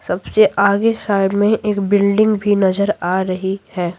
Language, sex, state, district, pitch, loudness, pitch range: Hindi, female, Bihar, Patna, 200 Hz, -16 LUFS, 190-210 Hz